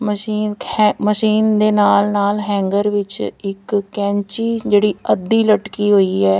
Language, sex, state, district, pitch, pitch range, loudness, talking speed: Punjabi, female, Punjab, Fazilka, 205 Hz, 200-215 Hz, -16 LUFS, 130 wpm